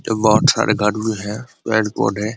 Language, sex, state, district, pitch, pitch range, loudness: Hindi, male, Jharkhand, Jamtara, 110 Hz, 105-115 Hz, -17 LUFS